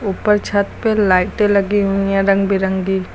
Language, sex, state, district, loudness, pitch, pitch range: Hindi, female, Uttar Pradesh, Lucknow, -16 LUFS, 195 Hz, 195-205 Hz